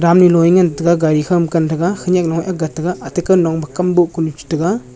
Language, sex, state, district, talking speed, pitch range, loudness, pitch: Wancho, male, Arunachal Pradesh, Longding, 195 wpm, 160-180 Hz, -15 LUFS, 170 Hz